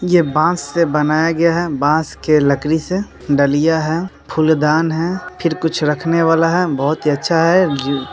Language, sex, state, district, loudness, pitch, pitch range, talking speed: Hindi, male, Bihar, Muzaffarpur, -16 LUFS, 160 Hz, 150-170 Hz, 185 wpm